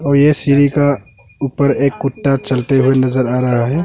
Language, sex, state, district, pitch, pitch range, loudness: Hindi, male, Arunachal Pradesh, Longding, 135 Hz, 130-140 Hz, -14 LUFS